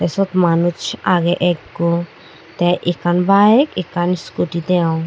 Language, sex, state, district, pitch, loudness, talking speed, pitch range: Chakma, female, Tripura, Dhalai, 175 Hz, -16 LUFS, 130 wpm, 170-180 Hz